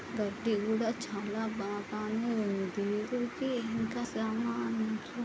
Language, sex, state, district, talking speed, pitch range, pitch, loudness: Telugu, female, Andhra Pradesh, Anantapur, 90 wpm, 210-230 Hz, 220 Hz, -34 LUFS